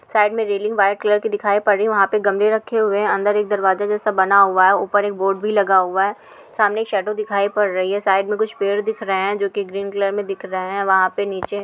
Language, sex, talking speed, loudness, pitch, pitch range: Hindi, female, 280 wpm, -18 LUFS, 205 Hz, 195-210 Hz